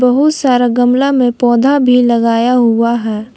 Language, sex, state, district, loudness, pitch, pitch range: Hindi, female, Jharkhand, Palamu, -11 LUFS, 245 Hz, 235-255 Hz